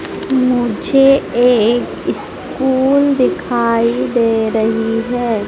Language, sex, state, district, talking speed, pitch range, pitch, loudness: Hindi, female, Madhya Pradesh, Dhar, 75 wpm, 225-260 Hz, 240 Hz, -14 LUFS